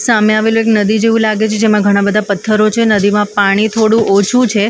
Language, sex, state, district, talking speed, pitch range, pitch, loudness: Gujarati, female, Maharashtra, Mumbai Suburban, 215 wpm, 205-220 Hz, 215 Hz, -11 LUFS